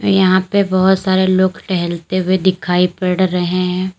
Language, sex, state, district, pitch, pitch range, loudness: Hindi, female, Uttar Pradesh, Lalitpur, 185 Hz, 180-190 Hz, -15 LUFS